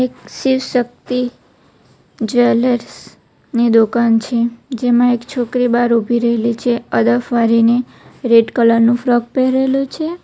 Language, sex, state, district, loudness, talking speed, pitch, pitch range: Gujarati, female, Gujarat, Valsad, -15 LUFS, 115 wpm, 240 Hz, 235-250 Hz